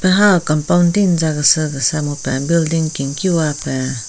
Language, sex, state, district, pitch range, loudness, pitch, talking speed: Rengma, female, Nagaland, Kohima, 145-170 Hz, -15 LUFS, 155 Hz, 145 wpm